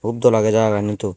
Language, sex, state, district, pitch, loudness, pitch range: Chakma, male, Tripura, Dhalai, 110 Hz, -17 LUFS, 105-110 Hz